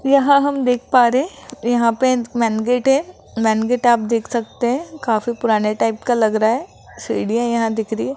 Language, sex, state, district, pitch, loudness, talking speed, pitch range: Hindi, female, Rajasthan, Jaipur, 240 Hz, -18 LUFS, 205 wpm, 225-260 Hz